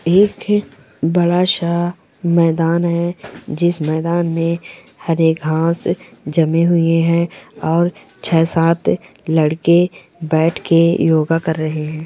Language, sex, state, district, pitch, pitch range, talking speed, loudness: Hindi, male, Goa, North and South Goa, 170 Hz, 160-175 Hz, 110 wpm, -16 LUFS